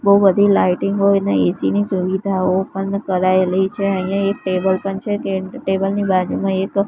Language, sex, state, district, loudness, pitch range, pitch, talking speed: Gujarati, female, Gujarat, Gandhinagar, -17 LUFS, 185-200 Hz, 195 Hz, 175 wpm